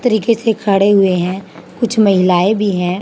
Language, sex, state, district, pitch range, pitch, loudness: Hindi, female, Haryana, Charkhi Dadri, 185-220 Hz, 200 Hz, -13 LUFS